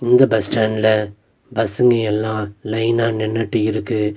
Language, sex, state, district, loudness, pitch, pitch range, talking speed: Tamil, male, Tamil Nadu, Nilgiris, -18 LUFS, 110 Hz, 110-115 Hz, 115 wpm